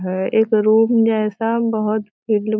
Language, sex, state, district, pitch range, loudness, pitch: Hindi, female, Bihar, Sitamarhi, 215-225 Hz, -18 LUFS, 215 Hz